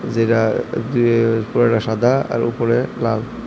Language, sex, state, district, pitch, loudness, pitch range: Bengali, male, Tripura, West Tripura, 115 Hz, -18 LUFS, 115-120 Hz